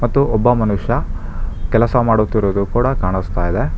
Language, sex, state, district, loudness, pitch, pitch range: Kannada, male, Karnataka, Bangalore, -17 LUFS, 105 Hz, 90-120 Hz